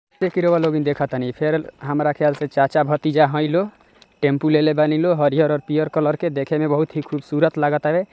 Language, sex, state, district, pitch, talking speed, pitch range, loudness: Maithili, male, Bihar, Samastipur, 150 Hz, 200 wpm, 145-155 Hz, -19 LUFS